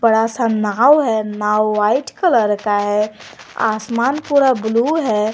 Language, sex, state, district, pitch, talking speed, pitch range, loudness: Hindi, female, Jharkhand, Garhwa, 220 Hz, 145 wpm, 210-260 Hz, -16 LUFS